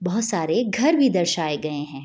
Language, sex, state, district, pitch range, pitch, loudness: Hindi, female, Bihar, Bhagalpur, 155-235 Hz, 180 Hz, -21 LUFS